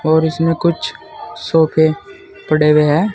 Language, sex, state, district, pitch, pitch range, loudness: Hindi, male, Uttar Pradesh, Saharanpur, 160 Hz, 155-170 Hz, -15 LUFS